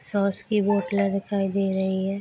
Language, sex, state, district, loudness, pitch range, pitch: Hindi, female, Bihar, Darbhanga, -24 LUFS, 195-200 Hz, 195 Hz